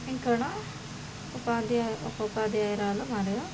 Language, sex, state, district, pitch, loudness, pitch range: Telugu, female, Andhra Pradesh, Chittoor, 215 Hz, -31 LUFS, 150-235 Hz